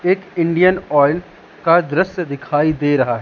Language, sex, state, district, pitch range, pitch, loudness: Hindi, male, Madhya Pradesh, Katni, 145-180 Hz, 165 Hz, -16 LUFS